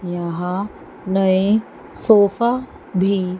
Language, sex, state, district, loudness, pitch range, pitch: Hindi, female, Chandigarh, Chandigarh, -19 LUFS, 185-210 Hz, 195 Hz